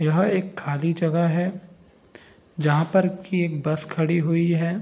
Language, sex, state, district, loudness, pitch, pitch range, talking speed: Hindi, male, Bihar, Saharsa, -23 LUFS, 170 Hz, 160-185 Hz, 160 wpm